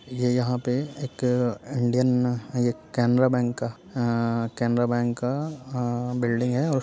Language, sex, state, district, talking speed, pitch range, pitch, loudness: Hindi, male, Uttar Pradesh, Muzaffarnagar, 160 wpm, 120-130 Hz, 125 Hz, -25 LUFS